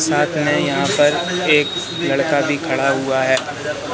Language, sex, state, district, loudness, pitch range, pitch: Hindi, male, Madhya Pradesh, Katni, -17 LUFS, 140-160 Hz, 145 Hz